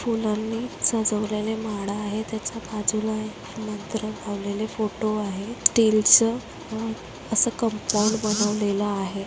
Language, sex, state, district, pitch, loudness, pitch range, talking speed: Marathi, female, Maharashtra, Dhule, 215 Hz, -24 LUFS, 210-220 Hz, 105 wpm